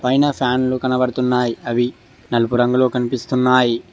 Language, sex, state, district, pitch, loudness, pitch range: Telugu, male, Telangana, Mahabubabad, 125 Hz, -18 LUFS, 120-130 Hz